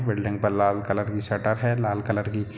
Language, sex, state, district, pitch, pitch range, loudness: Hindi, male, Bihar, Sitamarhi, 105 Hz, 105-110 Hz, -25 LUFS